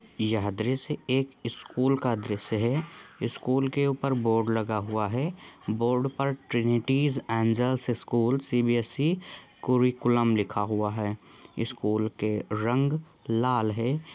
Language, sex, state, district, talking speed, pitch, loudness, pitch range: Hindi, male, Jharkhand, Sahebganj, 125 wpm, 120 Hz, -28 LUFS, 110-135 Hz